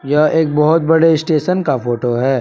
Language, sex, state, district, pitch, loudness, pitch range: Hindi, male, Jharkhand, Palamu, 150 Hz, -14 LUFS, 135-160 Hz